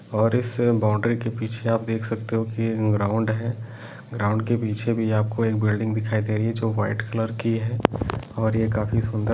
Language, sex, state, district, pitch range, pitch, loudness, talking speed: Hindi, male, Jharkhand, Jamtara, 110-115 Hz, 110 Hz, -24 LUFS, 210 wpm